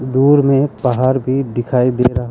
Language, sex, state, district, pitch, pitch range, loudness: Hindi, male, Arunachal Pradesh, Lower Dibang Valley, 130 Hz, 125-135 Hz, -15 LUFS